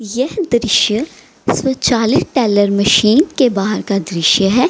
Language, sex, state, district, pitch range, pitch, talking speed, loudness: Hindi, female, Bihar, Gaya, 205-255 Hz, 220 Hz, 90 wpm, -14 LUFS